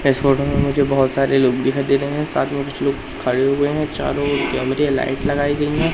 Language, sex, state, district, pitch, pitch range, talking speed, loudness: Hindi, male, Madhya Pradesh, Katni, 140 Hz, 135-145 Hz, 250 wpm, -19 LUFS